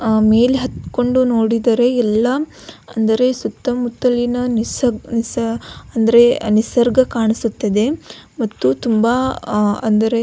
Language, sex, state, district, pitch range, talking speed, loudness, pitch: Kannada, female, Karnataka, Belgaum, 220-250 Hz, 100 wpm, -16 LUFS, 235 Hz